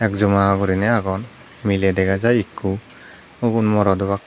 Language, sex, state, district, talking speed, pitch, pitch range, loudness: Chakma, male, Tripura, Dhalai, 140 wpm, 100 Hz, 95-110 Hz, -19 LUFS